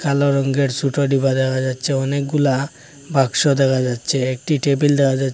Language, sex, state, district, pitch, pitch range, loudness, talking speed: Bengali, male, Assam, Hailakandi, 135 Hz, 130-140 Hz, -18 LUFS, 170 wpm